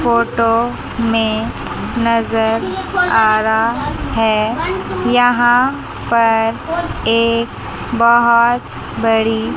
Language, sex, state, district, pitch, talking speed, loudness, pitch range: Hindi, male, Chandigarh, Chandigarh, 230 Hz, 70 wpm, -15 LUFS, 225-235 Hz